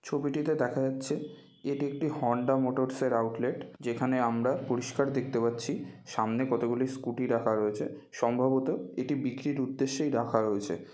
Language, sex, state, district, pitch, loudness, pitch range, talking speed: Bengali, male, West Bengal, North 24 Parganas, 130 Hz, -31 LUFS, 120-135 Hz, 130 wpm